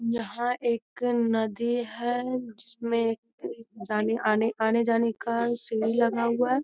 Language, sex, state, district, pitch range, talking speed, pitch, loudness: Hindi, female, Bihar, Jamui, 225-240 Hz, 120 wpm, 235 Hz, -27 LUFS